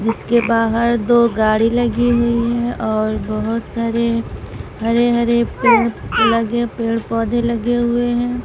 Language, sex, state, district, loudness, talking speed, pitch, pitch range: Hindi, female, Bihar, West Champaran, -17 LUFS, 135 wpm, 235 Hz, 230-240 Hz